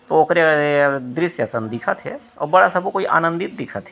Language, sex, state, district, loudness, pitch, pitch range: Chhattisgarhi, male, Chhattisgarh, Rajnandgaon, -18 LUFS, 155 Hz, 145-180 Hz